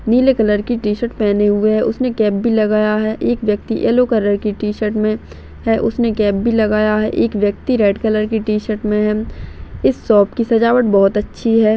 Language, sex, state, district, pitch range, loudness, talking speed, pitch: Hindi, female, Bihar, Madhepura, 210-230 Hz, -16 LUFS, 205 wpm, 215 Hz